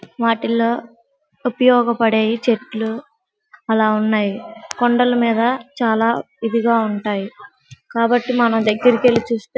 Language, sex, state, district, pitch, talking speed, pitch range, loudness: Telugu, male, Andhra Pradesh, Guntur, 230 Hz, 105 wpm, 220-245 Hz, -17 LUFS